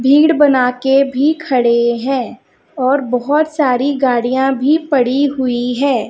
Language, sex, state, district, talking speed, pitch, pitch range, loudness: Hindi, female, Chhattisgarh, Raipur, 140 wpm, 265 Hz, 250-285 Hz, -14 LUFS